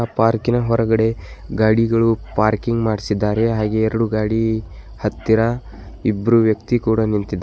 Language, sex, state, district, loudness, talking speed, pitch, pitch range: Kannada, male, Karnataka, Bidar, -18 LUFS, 115 wpm, 110 Hz, 105-115 Hz